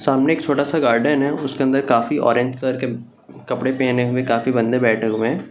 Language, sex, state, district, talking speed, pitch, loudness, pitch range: Hindi, male, Bihar, Saharsa, 215 wpm, 130 Hz, -19 LUFS, 120-140 Hz